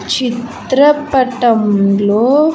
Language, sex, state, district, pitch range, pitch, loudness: Telugu, female, Andhra Pradesh, Sri Satya Sai, 220-275 Hz, 245 Hz, -12 LUFS